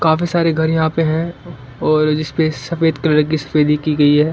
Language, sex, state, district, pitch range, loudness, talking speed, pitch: Hindi, female, Maharashtra, Chandrapur, 150-160 Hz, -16 LUFS, 205 wpm, 155 Hz